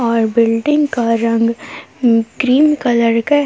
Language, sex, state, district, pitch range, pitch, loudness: Hindi, female, Jharkhand, Palamu, 230-285 Hz, 235 Hz, -14 LUFS